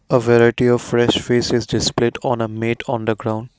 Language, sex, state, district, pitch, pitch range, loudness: English, male, Assam, Kamrup Metropolitan, 120 Hz, 115-120 Hz, -18 LUFS